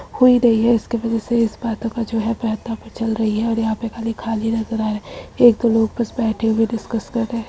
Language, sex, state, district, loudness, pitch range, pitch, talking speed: Hindi, female, Bihar, Samastipur, -19 LUFS, 225-230 Hz, 225 Hz, 280 wpm